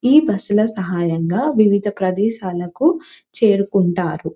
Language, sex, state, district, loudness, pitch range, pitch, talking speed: Telugu, female, Telangana, Nalgonda, -18 LUFS, 180-215 Hz, 200 Hz, 95 wpm